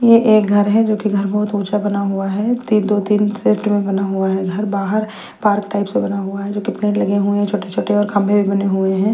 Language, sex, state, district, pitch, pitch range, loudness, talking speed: Hindi, female, Maharashtra, Mumbai Suburban, 205 Hz, 200-210 Hz, -17 LUFS, 265 wpm